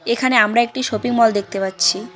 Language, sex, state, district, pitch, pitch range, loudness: Bengali, female, West Bengal, Cooch Behar, 230 Hz, 200-240 Hz, -17 LUFS